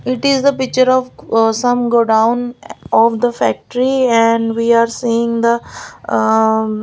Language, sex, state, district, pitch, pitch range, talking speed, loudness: English, female, Maharashtra, Gondia, 235 Hz, 230-250 Hz, 160 wpm, -14 LUFS